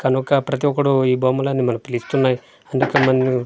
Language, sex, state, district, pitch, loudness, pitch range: Telugu, male, Andhra Pradesh, Manyam, 130 Hz, -19 LUFS, 130-140 Hz